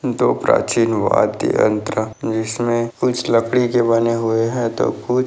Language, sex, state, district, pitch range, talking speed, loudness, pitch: Hindi, male, Bihar, Jahanabad, 110-120 Hz, 160 wpm, -18 LUFS, 115 Hz